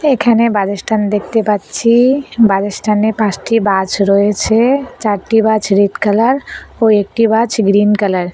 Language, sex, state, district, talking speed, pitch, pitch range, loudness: Bengali, female, West Bengal, Cooch Behar, 165 wpm, 215 Hz, 200-230 Hz, -13 LUFS